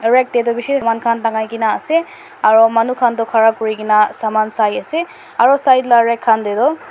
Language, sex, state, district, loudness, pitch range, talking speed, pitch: Nagamese, female, Nagaland, Dimapur, -15 LUFS, 220-250 Hz, 215 wpm, 230 Hz